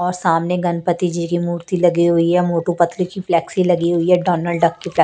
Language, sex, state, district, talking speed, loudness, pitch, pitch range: Hindi, female, Punjab, Pathankot, 240 wpm, -17 LUFS, 175 Hz, 170-180 Hz